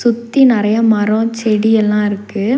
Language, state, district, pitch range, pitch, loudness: Tamil, Tamil Nadu, Nilgiris, 210-230 Hz, 220 Hz, -13 LUFS